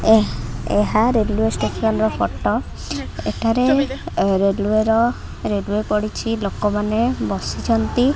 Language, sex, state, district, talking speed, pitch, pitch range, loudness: Odia, female, Odisha, Khordha, 105 wpm, 220 Hz, 205-230 Hz, -20 LUFS